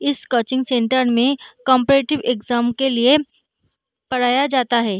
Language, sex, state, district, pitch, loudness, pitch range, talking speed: Hindi, female, Uttar Pradesh, Muzaffarnagar, 255 Hz, -18 LUFS, 240-270 Hz, 130 wpm